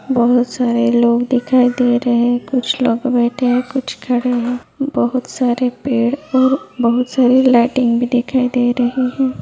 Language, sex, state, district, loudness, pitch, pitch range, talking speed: Hindi, male, Maharashtra, Nagpur, -15 LUFS, 245 Hz, 240-255 Hz, 170 wpm